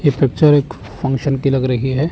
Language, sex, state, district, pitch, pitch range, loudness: Hindi, male, Chandigarh, Chandigarh, 135 Hz, 130-145 Hz, -16 LUFS